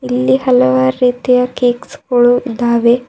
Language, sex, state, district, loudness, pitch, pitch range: Kannada, female, Karnataka, Bidar, -13 LUFS, 245 Hz, 240-250 Hz